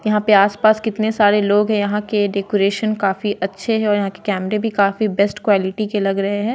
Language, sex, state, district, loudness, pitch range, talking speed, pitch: Hindi, female, Bihar, Sitamarhi, -17 LUFS, 200-215 Hz, 230 wpm, 205 Hz